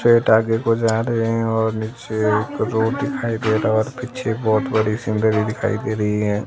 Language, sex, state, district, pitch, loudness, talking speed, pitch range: Hindi, female, Himachal Pradesh, Shimla, 110 Hz, -20 LUFS, 205 wpm, 110-115 Hz